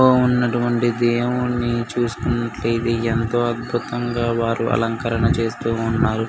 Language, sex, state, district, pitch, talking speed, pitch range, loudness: Telugu, male, Andhra Pradesh, Anantapur, 120 Hz, 85 wpm, 115-120 Hz, -20 LUFS